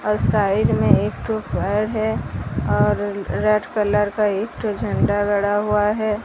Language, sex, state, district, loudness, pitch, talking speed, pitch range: Hindi, female, Odisha, Sambalpur, -20 LUFS, 210 Hz, 145 wpm, 205-215 Hz